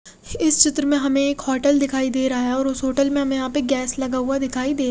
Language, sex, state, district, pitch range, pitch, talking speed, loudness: Hindi, female, Odisha, Khordha, 260-280 Hz, 270 Hz, 270 wpm, -20 LUFS